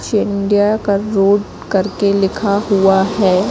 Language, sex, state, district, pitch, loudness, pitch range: Hindi, female, Madhya Pradesh, Katni, 200 Hz, -15 LUFS, 195-205 Hz